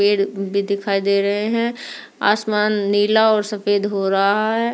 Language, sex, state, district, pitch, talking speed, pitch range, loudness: Hindi, female, Delhi, New Delhi, 205 Hz, 165 wpm, 200-215 Hz, -18 LUFS